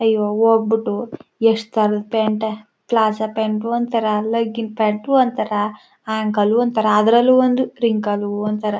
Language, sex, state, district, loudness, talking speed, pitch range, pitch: Kannada, female, Karnataka, Chamarajanagar, -18 LUFS, 110 wpm, 210-230 Hz, 220 Hz